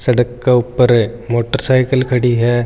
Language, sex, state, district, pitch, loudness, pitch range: Marwari, male, Rajasthan, Churu, 125 Hz, -14 LUFS, 120-130 Hz